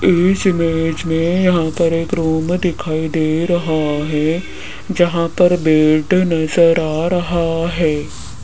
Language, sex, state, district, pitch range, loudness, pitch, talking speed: Hindi, female, Rajasthan, Jaipur, 155-175 Hz, -16 LUFS, 165 Hz, 130 wpm